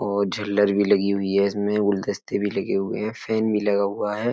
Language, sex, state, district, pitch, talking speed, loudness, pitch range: Hindi, male, Uttar Pradesh, Etah, 100 Hz, 235 wpm, -23 LUFS, 100-105 Hz